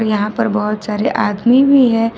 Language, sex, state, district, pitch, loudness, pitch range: Hindi, female, Jharkhand, Ranchi, 225 Hz, -14 LUFS, 210-240 Hz